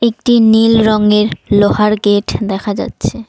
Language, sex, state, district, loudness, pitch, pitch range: Bengali, female, West Bengal, Cooch Behar, -12 LUFS, 215 Hz, 210-225 Hz